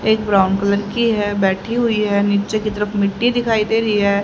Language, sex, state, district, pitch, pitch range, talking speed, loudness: Hindi, female, Haryana, Jhajjar, 210 Hz, 200-225 Hz, 225 wpm, -17 LUFS